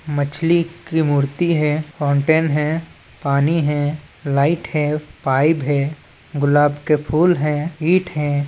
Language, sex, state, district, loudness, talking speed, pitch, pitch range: Chhattisgarhi, male, Chhattisgarh, Balrampur, -18 LUFS, 125 wpm, 150 Hz, 145-160 Hz